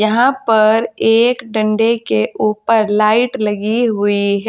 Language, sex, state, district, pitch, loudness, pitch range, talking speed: Hindi, female, Uttar Pradesh, Saharanpur, 220 Hz, -14 LUFS, 215-230 Hz, 135 wpm